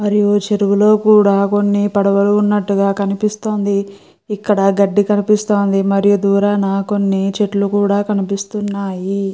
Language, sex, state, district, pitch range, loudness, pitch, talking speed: Telugu, female, Andhra Pradesh, Guntur, 200-205 Hz, -15 LUFS, 200 Hz, 105 wpm